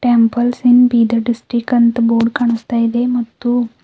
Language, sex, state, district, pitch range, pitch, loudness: Kannada, female, Karnataka, Bidar, 230-245 Hz, 235 Hz, -14 LUFS